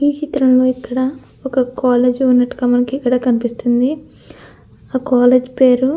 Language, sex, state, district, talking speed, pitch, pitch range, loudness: Telugu, female, Andhra Pradesh, Anantapur, 100 wpm, 255 Hz, 245-265 Hz, -15 LUFS